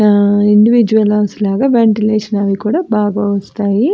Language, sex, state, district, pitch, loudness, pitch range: Telugu, female, Andhra Pradesh, Anantapur, 210 Hz, -12 LUFS, 205-215 Hz